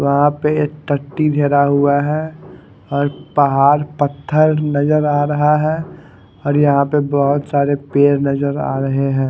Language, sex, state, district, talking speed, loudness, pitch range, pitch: Hindi, male, Odisha, Khordha, 135 wpm, -16 LUFS, 140-150 Hz, 145 Hz